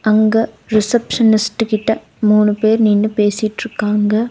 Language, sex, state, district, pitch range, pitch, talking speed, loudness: Tamil, female, Tamil Nadu, Nilgiris, 210-225 Hz, 215 Hz, 95 wpm, -15 LUFS